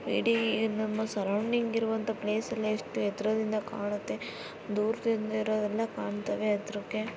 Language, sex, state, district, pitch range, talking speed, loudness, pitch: Kannada, female, Karnataka, Bellary, 210-220 Hz, 110 wpm, -31 LUFS, 215 Hz